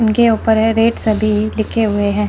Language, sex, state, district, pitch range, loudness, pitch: Hindi, female, Chandigarh, Chandigarh, 210-225 Hz, -15 LUFS, 220 Hz